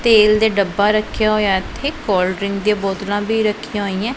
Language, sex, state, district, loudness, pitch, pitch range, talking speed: Punjabi, female, Punjab, Pathankot, -17 LUFS, 210 Hz, 200-215 Hz, 185 wpm